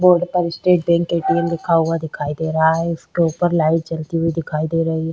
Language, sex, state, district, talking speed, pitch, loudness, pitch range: Hindi, female, Chhattisgarh, Kabirdham, 245 wpm, 165 Hz, -18 LUFS, 160-170 Hz